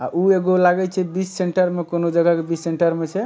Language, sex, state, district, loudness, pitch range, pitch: Maithili, male, Bihar, Supaul, -19 LUFS, 170-185 Hz, 175 Hz